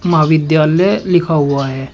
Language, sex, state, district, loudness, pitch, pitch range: Hindi, male, Uttar Pradesh, Shamli, -13 LUFS, 155 Hz, 145-175 Hz